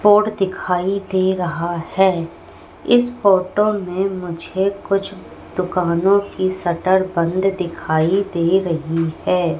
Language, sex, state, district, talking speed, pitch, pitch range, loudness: Hindi, female, Madhya Pradesh, Katni, 110 wpm, 185 Hz, 170-195 Hz, -19 LUFS